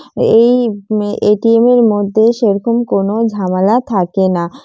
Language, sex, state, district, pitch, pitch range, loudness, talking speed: Bengali, female, West Bengal, Jalpaiguri, 215 Hz, 200-230 Hz, -12 LUFS, 140 wpm